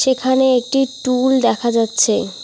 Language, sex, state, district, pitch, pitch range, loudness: Bengali, female, West Bengal, Cooch Behar, 260 Hz, 245-265 Hz, -16 LUFS